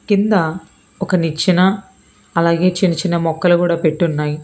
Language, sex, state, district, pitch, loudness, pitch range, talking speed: Telugu, female, Telangana, Hyderabad, 175 Hz, -16 LUFS, 165-185 Hz, 120 wpm